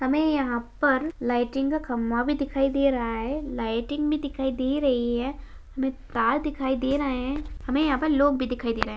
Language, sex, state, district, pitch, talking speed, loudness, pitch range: Hindi, female, Bihar, Begusarai, 265 Hz, 215 wpm, -26 LUFS, 245-285 Hz